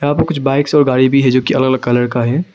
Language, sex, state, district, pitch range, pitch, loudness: Hindi, male, Arunachal Pradesh, Longding, 130-145 Hz, 130 Hz, -13 LUFS